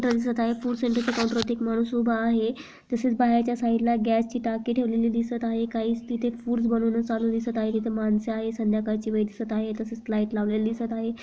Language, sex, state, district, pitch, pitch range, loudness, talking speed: Marathi, female, Maharashtra, Chandrapur, 230 Hz, 225-235 Hz, -26 LUFS, 200 wpm